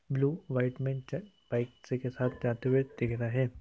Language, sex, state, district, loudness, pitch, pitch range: Hindi, male, Uttar Pradesh, Hamirpur, -33 LUFS, 130 Hz, 120-135 Hz